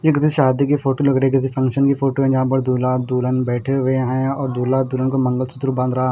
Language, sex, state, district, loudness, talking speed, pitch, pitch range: Hindi, male, Maharashtra, Gondia, -18 LUFS, 255 wpm, 130 Hz, 130-135 Hz